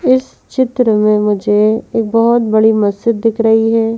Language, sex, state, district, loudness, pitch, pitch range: Hindi, female, Madhya Pradesh, Bhopal, -13 LUFS, 225 Hz, 215-230 Hz